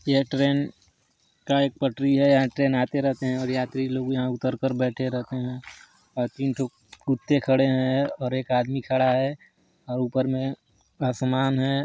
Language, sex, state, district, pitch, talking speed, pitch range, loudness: Hindi, male, Chhattisgarh, Sarguja, 130 Hz, 180 wpm, 130-135 Hz, -25 LUFS